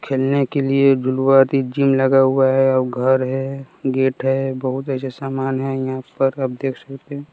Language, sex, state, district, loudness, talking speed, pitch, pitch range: Hindi, male, Bihar, West Champaran, -18 LUFS, 180 wpm, 135 Hz, 130-135 Hz